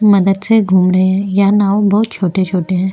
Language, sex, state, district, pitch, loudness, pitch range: Hindi, female, Uttarakhand, Tehri Garhwal, 195 Hz, -13 LUFS, 185-205 Hz